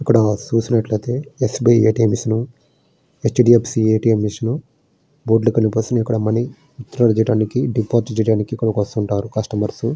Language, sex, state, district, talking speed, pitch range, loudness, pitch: Telugu, male, Andhra Pradesh, Srikakulam, 110 wpm, 110-125 Hz, -18 LUFS, 115 Hz